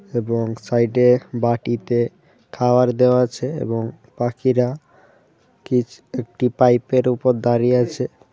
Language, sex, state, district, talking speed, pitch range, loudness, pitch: Bengali, male, Tripura, West Tripura, 110 wpm, 120-125 Hz, -19 LUFS, 125 Hz